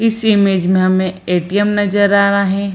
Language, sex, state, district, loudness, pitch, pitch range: Hindi, female, Bihar, Samastipur, -14 LUFS, 200 Hz, 185-205 Hz